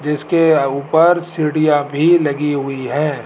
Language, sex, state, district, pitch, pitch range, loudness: Hindi, male, Rajasthan, Jaipur, 150 Hz, 145-160 Hz, -15 LUFS